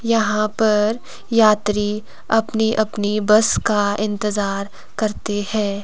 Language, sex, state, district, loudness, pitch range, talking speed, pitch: Hindi, female, Himachal Pradesh, Shimla, -19 LUFS, 205-220 Hz, 105 wpm, 210 Hz